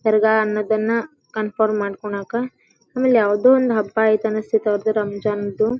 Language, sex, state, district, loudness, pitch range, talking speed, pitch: Kannada, female, Karnataka, Dharwad, -19 LUFS, 210-230 Hz, 135 wpm, 220 Hz